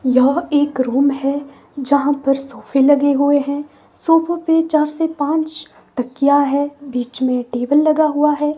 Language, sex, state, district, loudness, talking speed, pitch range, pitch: Hindi, female, Himachal Pradesh, Shimla, -17 LUFS, 160 wpm, 270-300 Hz, 285 Hz